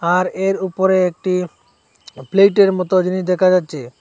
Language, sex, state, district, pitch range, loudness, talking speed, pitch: Bengali, male, Assam, Hailakandi, 170-190 Hz, -16 LUFS, 135 wpm, 185 Hz